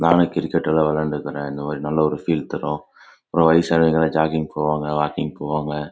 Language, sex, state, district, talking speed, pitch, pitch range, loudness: Tamil, male, Karnataka, Chamarajanagar, 120 wpm, 75 Hz, 75-80 Hz, -21 LUFS